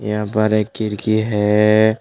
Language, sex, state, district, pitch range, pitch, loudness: Hindi, male, Tripura, West Tripura, 105-110 Hz, 110 Hz, -17 LUFS